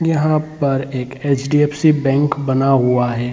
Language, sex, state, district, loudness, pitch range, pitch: Hindi, male, Bihar, Gaya, -16 LUFS, 130-150 Hz, 140 Hz